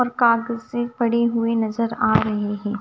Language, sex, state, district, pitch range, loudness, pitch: Hindi, female, Punjab, Kapurthala, 215-235 Hz, -21 LUFS, 230 Hz